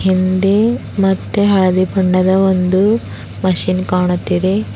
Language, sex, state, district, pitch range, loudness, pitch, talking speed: Kannada, female, Karnataka, Bidar, 185-195 Hz, -14 LUFS, 190 Hz, 90 wpm